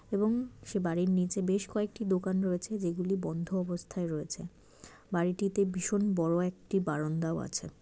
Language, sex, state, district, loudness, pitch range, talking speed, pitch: Bengali, female, West Bengal, Malda, -32 LUFS, 175-200 Hz, 140 wpm, 185 Hz